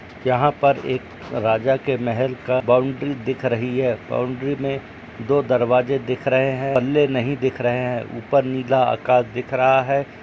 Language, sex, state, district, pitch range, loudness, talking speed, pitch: Hindi, male, Bihar, Gaya, 125-135 Hz, -20 LUFS, 170 wpm, 130 Hz